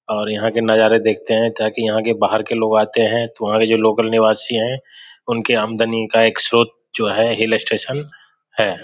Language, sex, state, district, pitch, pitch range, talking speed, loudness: Hindi, male, Bihar, Samastipur, 110 Hz, 110-115 Hz, 210 wpm, -17 LUFS